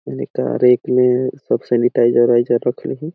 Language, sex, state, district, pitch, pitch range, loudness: Awadhi, male, Chhattisgarh, Balrampur, 125 Hz, 120-125 Hz, -16 LUFS